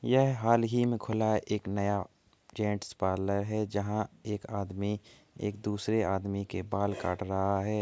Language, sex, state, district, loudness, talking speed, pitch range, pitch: Hindi, male, Uttar Pradesh, Varanasi, -32 LUFS, 160 wpm, 100-110 Hz, 105 Hz